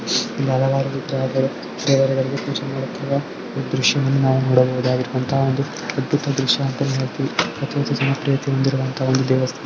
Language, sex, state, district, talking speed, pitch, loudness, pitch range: Kannada, male, Karnataka, Belgaum, 125 wpm, 135 Hz, -20 LUFS, 130-140 Hz